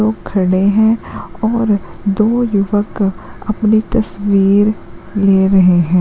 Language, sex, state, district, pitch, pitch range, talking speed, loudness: Hindi, female, Uttarakhand, Uttarkashi, 205 Hz, 195-215 Hz, 110 wpm, -14 LUFS